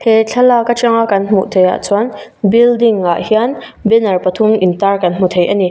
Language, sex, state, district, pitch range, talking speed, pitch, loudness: Mizo, female, Mizoram, Aizawl, 190-230 Hz, 210 wpm, 215 Hz, -12 LUFS